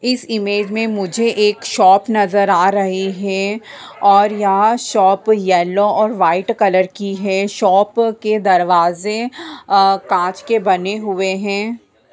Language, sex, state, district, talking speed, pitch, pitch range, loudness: Hindi, female, Bihar, Sitamarhi, 140 wpm, 200 Hz, 195-215 Hz, -15 LUFS